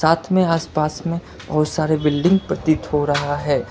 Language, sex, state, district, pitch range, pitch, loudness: Hindi, male, Karnataka, Bangalore, 150-170 Hz, 155 Hz, -19 LUFS